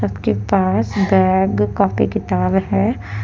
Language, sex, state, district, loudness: Hindi, female, Jharkhand, Deoghar, -17 LUFS